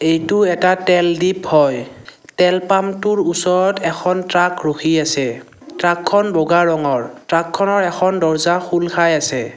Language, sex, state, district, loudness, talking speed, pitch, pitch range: Assamese, male, Assam, Kamrup Metropolitan, -16 LUFS, 150 wpm, 175 Hz, 160-185 Hz